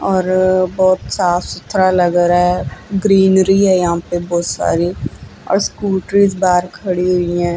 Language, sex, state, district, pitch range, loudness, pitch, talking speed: Hindi, female, Chandigarh, Chandigarh, 175-190 Hz, -15 LUFS, 185 Hz, 160 wpm